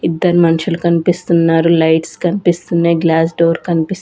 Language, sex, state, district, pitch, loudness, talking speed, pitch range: Telugu, female, Andhra Pradesh, Sri Satya Sai, 170 Hz, -13 LUFS, 120 wpm, 165-175 Hz